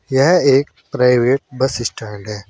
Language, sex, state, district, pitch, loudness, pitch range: Hindi, male, Uttar Pradesh, Saharanpur, 125 Hz, -15 LUFS, 110-135 Hz